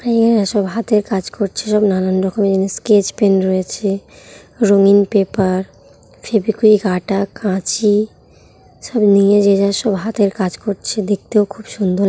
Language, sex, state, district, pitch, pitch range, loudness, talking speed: Bengali, female, West Bengal, Kolkata, 200 Hz, 195-210 Hz, -15 LUFS, 130 wpm